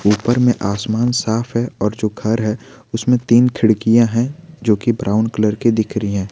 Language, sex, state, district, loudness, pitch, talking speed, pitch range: Hindi, male, Jharkhand, Garhwa, -17 LUFS, 115 Hz, 190 wpm, 105-120 Hz